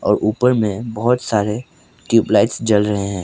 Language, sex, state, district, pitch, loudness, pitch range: Hindi, male, Arunachal Pradesh, Papum Pare, 110 Hz, -17 LUFS, 105-120 Hz